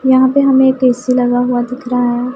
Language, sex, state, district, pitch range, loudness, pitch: Hindi, female, Punjab, Pathankot, 245-260 Hz, -13 LUFS, 250 Hz